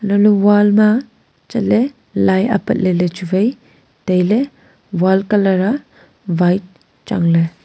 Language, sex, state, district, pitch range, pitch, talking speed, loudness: Wancho, female, Arunachal Pradesh, Longding, 180-210 Hz, 195 Hz, 115 wpm, -15 LUFS